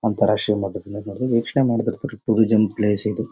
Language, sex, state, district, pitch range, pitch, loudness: Kannada, male, Karnataka, Bellary, 105-115 Hz, 110 Hz, -21 LUFS